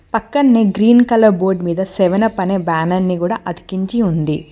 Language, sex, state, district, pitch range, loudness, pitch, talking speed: Telugu, female, Telangana, Mahabubabad, 180-225 Hz, -15 LUFS, 190 Hz, 175 wpm